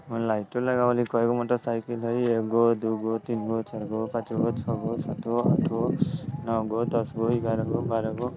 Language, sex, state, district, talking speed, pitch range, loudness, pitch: Bajjika, male, Bihar, Vaishali, 145 wpm, 115-120 Hz, -27 LUFS, 115 Hz